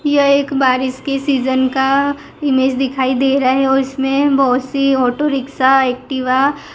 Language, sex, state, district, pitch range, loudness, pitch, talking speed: Hindi, female, Gujarat, Gandhinagar, 260-275 Hz, -15 LUFS, 270 Hz, 170 wpm